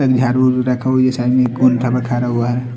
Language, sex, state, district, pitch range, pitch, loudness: Hindi, male, Chandigarh, Chandigarh, 125-130 Hz, 125 Hz, -15 LUFS